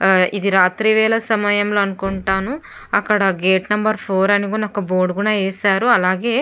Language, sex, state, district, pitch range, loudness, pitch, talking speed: Telugu, female, Andhra Pradesh, Chittoor, 190-215 Hz, -17 LUFS, 200 Hz, 150 wpm